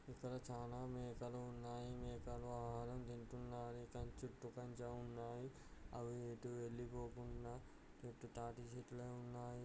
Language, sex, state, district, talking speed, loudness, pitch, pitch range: Telugu, male, Andhra Pradesh, Guntur, 95 wpm, -52 LUFS, 120 Hz, 120-125 Hz